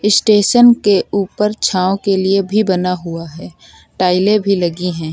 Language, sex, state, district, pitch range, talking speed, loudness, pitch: Hindi, female, Uttar Pradesh, Lucknow, 175-205 Hz, 165 wpm, -14 LUFS, 190 Hz